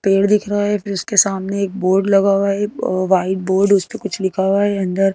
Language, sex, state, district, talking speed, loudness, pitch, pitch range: Hindi, female, Madhya Pradesh, Bhopal, 235 wpm, -17 LUFS, 195 Hz, 190-200 Hz